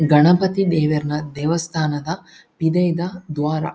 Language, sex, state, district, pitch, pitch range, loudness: Tulu, male, Karnataka, Dakshina Kannada, 160 Hz, 150-175 Hz, -19 LUFS